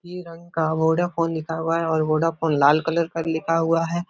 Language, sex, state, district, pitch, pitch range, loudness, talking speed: Hindi, male, Bihar, Supaul, 165 Hz, 160-165 Hz, -22 LUFS, 220 wpm